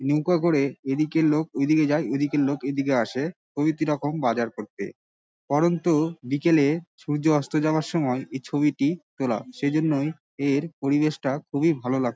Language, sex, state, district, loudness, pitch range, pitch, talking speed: Bengali, male, West Bengal, Dakshin Dinajpur, -24 LUFS, 140-155 Hz, 145 Hz, 165 wpm